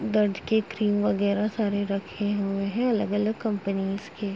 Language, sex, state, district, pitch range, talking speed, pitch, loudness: Hindi, female, Uttar Pradesh, Etah, 200-215 Hz, 150 wpm, 205 Hz, -26 LUFS